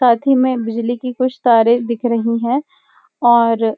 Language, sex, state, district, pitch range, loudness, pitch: Hindi, female, Uttarakhand, Uttarkashi, 230-255 Hz, -15 LUFS, 240 Hz